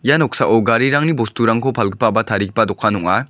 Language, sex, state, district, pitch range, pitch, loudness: Garo, male, Meghalaya, West Garo Hills, 110-135 Hz, 115 Hz, -16 LUFS